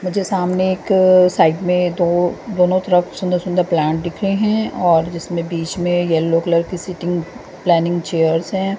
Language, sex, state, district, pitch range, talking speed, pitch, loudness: Hindi, female, Haryana, Jhajjar, 170-185 Hz, 170 wpm, 175 Hz, -17 LUFS